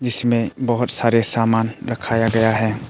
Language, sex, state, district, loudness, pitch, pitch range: Hindi, male, Arunachal Pradesh, Papum Pare, -19 LUFS, 115 Hz, 115-120 Hz